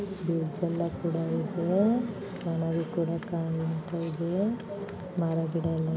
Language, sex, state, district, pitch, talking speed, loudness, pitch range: Kannada, female, Karnataka, Dakshina Kannada, 170 Hz, 110 wpm, -30 LUFS, 165-190 Hz